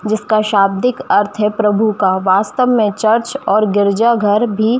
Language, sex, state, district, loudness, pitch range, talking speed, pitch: Hindi, female, Jharkhand, Jamtara, -14 LUFS, 205-225 Hz, 150 wpm, 215 Hz